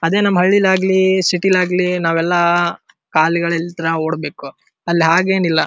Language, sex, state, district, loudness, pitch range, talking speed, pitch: Kannada, male, Karnataka, Dharwad, -15 LUFS, 165-190 Hz, 105 wpm, 175 Hz